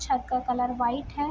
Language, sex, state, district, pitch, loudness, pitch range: Hindi, female, Bihar, Sitamarhi, 250 Hz, -28 LUFS, 245-270 Hz